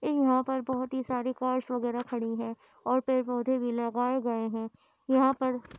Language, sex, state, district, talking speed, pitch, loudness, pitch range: Hindi, female, Uttar Pradesh, Muzaffarnagar, 185 wpm, 255 Hz, -30 LUFS, 240-260 Hz